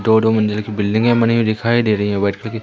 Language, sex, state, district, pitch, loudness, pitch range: Hindi, female, Madhya Pradesh, Umaria, 110 Hz, -16 LUFS, 105-115 Hz